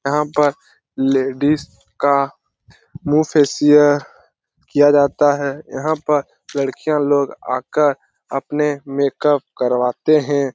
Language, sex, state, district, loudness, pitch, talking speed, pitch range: Hindi, male, Bihar, Lakhisarai, -17 LUFS, 145 Hz, 115 wpm, 140-150 Hz